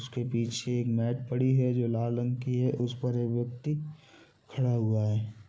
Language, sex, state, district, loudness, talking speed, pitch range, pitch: Hindi, male, Bihar, Gopalganj, -30 LUFS, 205 wpm, 115-125 Hz, 120 Hz